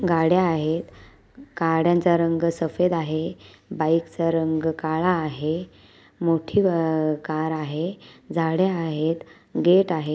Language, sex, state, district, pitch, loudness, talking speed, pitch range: Marathi, female, Maharashtra, Nagpur, 165 Hz, -23 LUFS, 105 wpm, 160-175 Hz